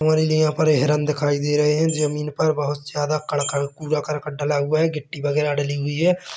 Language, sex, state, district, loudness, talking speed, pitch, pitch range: Hindi, male, Chhattisgarh, Bilaspur, -21 LUFS, 205 wpm, 150 Hz, 145-155 Hz